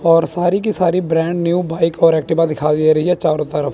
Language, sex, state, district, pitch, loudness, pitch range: Hindi, male, Chandigarh, Chandigarh, 165 Hz, -16 LUFS, 155-175 Hz